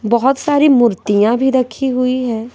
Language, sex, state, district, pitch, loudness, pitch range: Hindi, female, Bihar, West Champaran, 255 Hz, -14 LUFS, 230-265 Hz